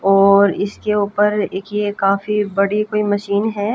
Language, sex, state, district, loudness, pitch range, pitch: Hindi, female, Haryana, Jhajjar, -17 LUFS, 200-210 Hz, 205 Hz